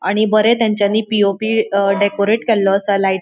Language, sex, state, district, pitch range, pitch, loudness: Konkani, female, Goa, North and South Goa, 200-220 Hz, 205 Hz, -15 LUFS